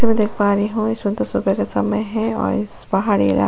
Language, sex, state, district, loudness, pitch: Hindi, female, Goa, North and South Goa, -19 LUFS, 205 Hz